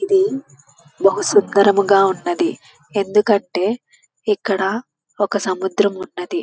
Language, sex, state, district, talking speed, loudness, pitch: Telugu, female, Andhra Pradesh, Krishna, 85 wpm, -18 LUFS, 200 Hz